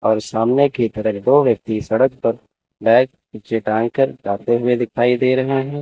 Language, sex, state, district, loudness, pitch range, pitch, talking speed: Hindi, male, Chandigarh, Chandigarh, -18 LUFS, 110-130 Hz, 120 Hz, 185 wpm